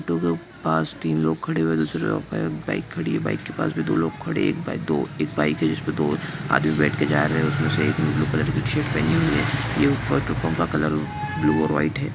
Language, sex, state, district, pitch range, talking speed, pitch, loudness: Hindi, male, Bihar, East Champaran, 75-80 Hz, 275 wpm, 80 Hz, -23 LUFS